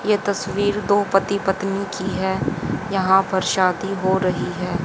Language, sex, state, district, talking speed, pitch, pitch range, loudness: Hindi, female, Haryana, Jhajjar, 160 wpm, 190 Hz, 185-200 Hz, -21 LUFS